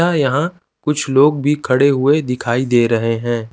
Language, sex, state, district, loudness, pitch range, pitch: Hindi, male, Chandigarh, Chandigarh, -16 LUFS, 120-150 Hz, 135 Hz